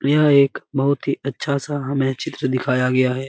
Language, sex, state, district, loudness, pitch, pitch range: Hindi, male, Bihar, Lakhisarai, -20 LUFS, 135 Hz, 130-140 Hz